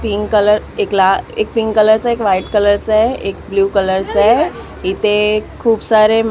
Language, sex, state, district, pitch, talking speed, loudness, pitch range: Marathi, female, Maharashtra, Mumbai Suburban, 210 Hz, 210 wpm, -14 LUFS, 200-220 Hz